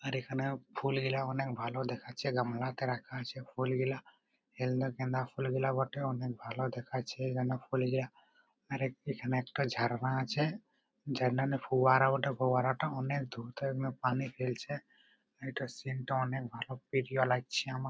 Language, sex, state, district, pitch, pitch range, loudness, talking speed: Bengali, male, West Bengal, Purulia, 130 Hz, 125-135 Hz, -35 LUFS, 165 wpm